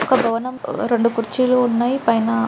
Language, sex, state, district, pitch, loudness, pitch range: Telugu, female, Andhra Pradesh, Guntur, 235 Hz, -19 LUFS, 230-255 Hz